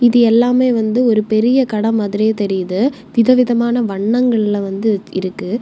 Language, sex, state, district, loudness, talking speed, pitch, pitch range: Tamil, female, Tamil Nadu, Kanyakumari, -15 LUFS, 130 wpm, 225 Hz, 205-240 Hz